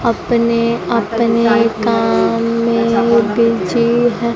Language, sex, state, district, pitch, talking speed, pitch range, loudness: Hindi, female, Bihar, Kaimur, 230 Hz, 80 wpm, 230-235 Hz, -14 LUFS